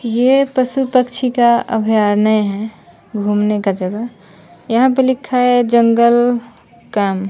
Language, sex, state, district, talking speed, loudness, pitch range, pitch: Hindi, male, Bihar, West Champaran, 125 wpm, -15 LUFS, 205-250 Hz, 230 Hz